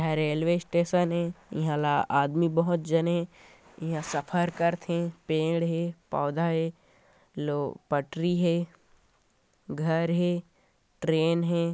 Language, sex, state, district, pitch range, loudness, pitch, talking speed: Hindi, male, Chhattisgarh, Korba, 160-170 Hz, -28 LUFS, 170 Hz, 130 wpm